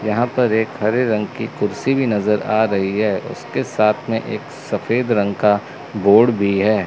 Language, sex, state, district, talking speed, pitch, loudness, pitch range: Hindi, male, Chandigarh, Chandigarh, 190 wpm, 110 Hz, -18 LUFS, 105-115 Hz